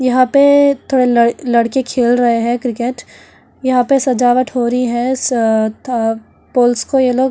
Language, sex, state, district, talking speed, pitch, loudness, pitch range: Hindi, female, Delhi, New Delhi, 165 wpm, 250 Hz, -14 LUFS, 240-260 Hz